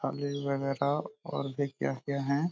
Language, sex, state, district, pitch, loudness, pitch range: Hindi, male, Jharkhand, Jamtara, 140 Hz, -33 LUFS, 140-145 Hz